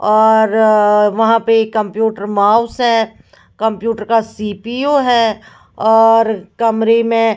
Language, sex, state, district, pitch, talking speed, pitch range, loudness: Hindi, female, Bihar, West Champaran, 225 Hz, 120 wpm, 215-230 Hz, -13 LUFS